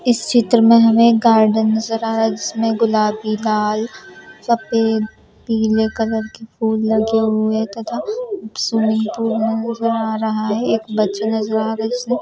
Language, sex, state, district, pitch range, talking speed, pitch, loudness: Hindi, female, Bihar, Saharsa, 220-230 Hz, 165 wpm, 225 Hz, -17 LUFS